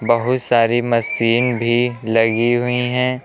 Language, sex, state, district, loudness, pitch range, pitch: Hindi, male, Uttar Pradesh, Lucknow, -17 LUFS, 115-125 Hz, 120 Hz